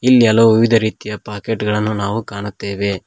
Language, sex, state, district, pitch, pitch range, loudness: Kannada, male, Karnataka, Koppal, 105 Hz, 100-115 Hz, -16 LUFS